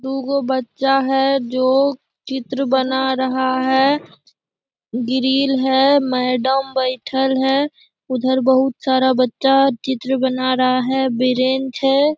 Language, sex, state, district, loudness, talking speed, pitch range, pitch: Hindi, female, Bihar, Begusarai, -17 LUFS, 115 wpm, 260-270 Hz, 265 Hz